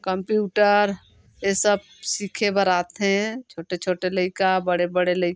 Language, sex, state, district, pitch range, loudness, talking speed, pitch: Chhattisgarhi, female, Chhattisgarh, Sarguja, 180-205 Hz, -22 LUFS, 110 wpm, 190 Hz